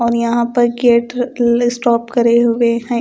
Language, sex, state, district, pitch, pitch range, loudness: Hindi, female, Chandigarh, Chandigarh, 235 Hz, 235-240 Hz, -14 LUFS